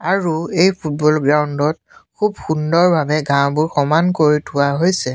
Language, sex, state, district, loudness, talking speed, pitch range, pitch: Assamese, male, Assam, Sonitpur, -16 LUFS, 150 wpm, 150-170 Hz, 155 Hz